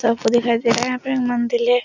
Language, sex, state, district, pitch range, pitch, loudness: Hindi, female, Bihar, Supaul, 235-245 Hz, 240 Hz, -19 LUFS